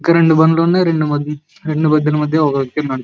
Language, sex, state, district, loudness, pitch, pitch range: Telugu, male, Andhra Pradesh, Anantapur, -14 LUFS, 155 Hz, 150-165 Hz